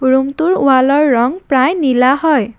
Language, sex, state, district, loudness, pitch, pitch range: Assamese, female, Assam, Kamrup Metropolitan, -12 LUFS, 270 Hz, 260-305 Hz